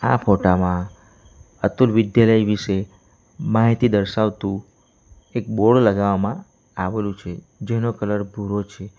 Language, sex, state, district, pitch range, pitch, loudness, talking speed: Gujarati, male, Gujarat, Valsad, 100-115 Hz, 105 Hz, -20 LUFS, 115 wpm